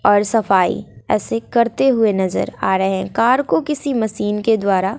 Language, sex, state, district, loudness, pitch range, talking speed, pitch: Hindi, female, Bihar, West Champaran, -17 LUFS, 195-235 Hz, 180 wpm, 220 Hz